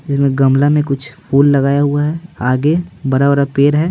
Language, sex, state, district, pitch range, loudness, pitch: Hindi, male, Bihar, Patna, 140-150 Hz, -14 LUFS, 140 Hz